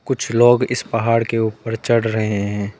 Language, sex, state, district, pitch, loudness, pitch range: Hindi, male, West Bengal, Alipurduar, 115 Hz, -18 LUFS, 110-120 Hz